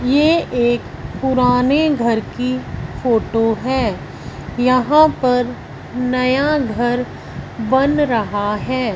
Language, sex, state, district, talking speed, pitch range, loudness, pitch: Hindi, female, Punjab, Fazilka, 95 wpm, 225-265 Hz, -17 LUFS, 250 Hz